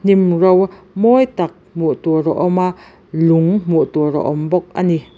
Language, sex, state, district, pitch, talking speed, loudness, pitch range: Mizo, female, Mizoram, Aizawl, 180 Hz, 195 wpm, -15 LUFS, 160-185 Hz